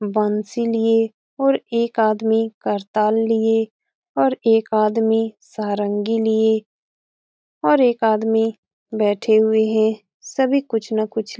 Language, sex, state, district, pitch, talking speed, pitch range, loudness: Hindi, female, Bihar, Saran, 220 Hz, 120 wpm, 215-225 Hz, -19 LUFS